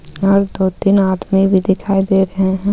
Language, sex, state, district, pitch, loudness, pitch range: Hindi, female, Jharkhand, Ranchi, 195 Hz, -15 LUFS, 190-195 Hz